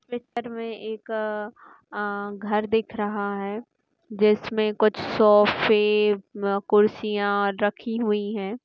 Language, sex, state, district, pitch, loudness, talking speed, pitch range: Marathi, female, Maharashtra, Sindhudurg, 210 Hz, -24 LUFS, 105 wpm, 205-225 Hz